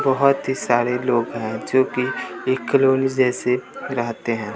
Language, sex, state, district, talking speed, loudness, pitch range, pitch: Hindi, male, Bihar, West Champaran, 160 wpm, -21 LUFS, 120-130 Hz, 125 Hz